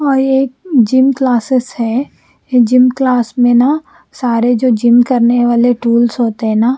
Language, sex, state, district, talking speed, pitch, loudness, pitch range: Hindi, female, Bihar, Patna, 160 wpm, 245 Hz, -12 LUFS, 240-260 Hz